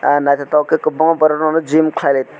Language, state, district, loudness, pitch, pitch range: Kokborok, Tripura, West Tripura, -14 LUFS, 155 Hz, 145-160 Hz